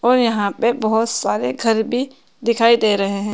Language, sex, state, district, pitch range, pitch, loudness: Hindi, female, Uttar Pradesh, Saharanpur, 205-235 Hz, 225 Hz, -18 LUFS